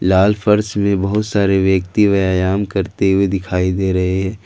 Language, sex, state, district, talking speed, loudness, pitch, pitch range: Hindi, male, Jharkhand, Ranchi, 175 wpm, -16 LUFS, 95 Hz, 95-100 Hz